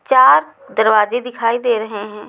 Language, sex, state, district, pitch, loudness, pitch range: Hindi, female, Chhattisgarh, Raipur, 230 Hz, -15 LUFS, 215-250 Hz